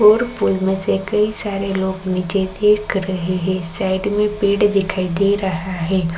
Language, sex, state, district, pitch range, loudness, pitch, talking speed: Hindi, female, Uttarakhand, Tehri Garhwal, 185-205 Hz, -18 LUFS, 190 Hz, 175 wpm